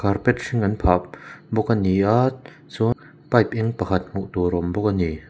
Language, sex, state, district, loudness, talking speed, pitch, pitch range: Mizo, male, Mizoram, Aizawl, -22 LUFS, 215 wpm, 105 Hz, 90-120 Hz